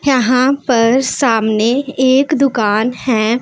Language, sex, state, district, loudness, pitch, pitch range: Hindi, female, Punjab, Pathankot, -13 LUFS, 250 Hz, 230-270 Hz